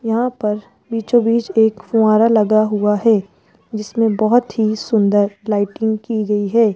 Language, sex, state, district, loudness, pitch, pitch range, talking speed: Hindi, female, Rajasthan, Jaipur, -16 LUFS, 220 Hz, 210-225 Hz, 150 wpm